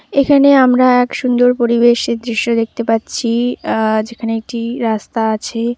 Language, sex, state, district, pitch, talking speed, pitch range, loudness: Bengali, female, West Bengal, Jalpaiguri, 235 Hz, 135 wpm, 225-245 Hz, -14 LUFS